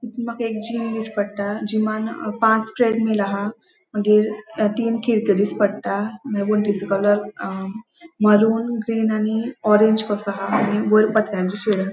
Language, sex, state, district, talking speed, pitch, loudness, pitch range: Konkani, female, Goa, North and South Goa, 145 wpm, 215 Hz, -20 LUFS, 205-225 Hz